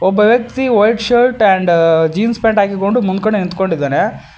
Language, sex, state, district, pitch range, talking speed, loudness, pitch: Kannada, male, Karnataka, Koppal, 190-230 Hz, 135 wpm, -13 LUFS, 210 Hz